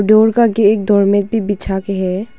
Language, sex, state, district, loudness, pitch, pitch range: Hindi, female, Arunachal Pradesh, Longding, -14 LUFS, 205 Hz, 200-220 Hz